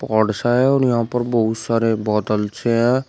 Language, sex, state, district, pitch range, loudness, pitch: Hindi, male, Uttar Pradesh, Shamli, 110-120 Hz, -18 LUFS, 115 Hz